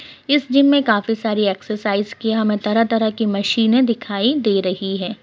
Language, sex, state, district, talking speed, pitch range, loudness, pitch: Hindi, female, Bihar, Bhagalpur, 170 wpm, 205-230 Hz, -18 LUFS, 220 Hz